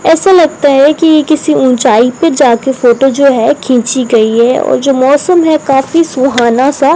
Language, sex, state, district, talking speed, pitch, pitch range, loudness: Hindi, female, Rajasthan, Bikaner, 200 wpm, 275 Hz, 255-310 Hz, -8 LUFS